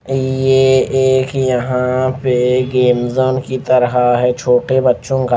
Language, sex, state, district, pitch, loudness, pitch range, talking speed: Hindi, male, Maharashtra, Mumbai Suburban, 130 Hz, -14 LUFS, 125-130 Hz, 145 wpm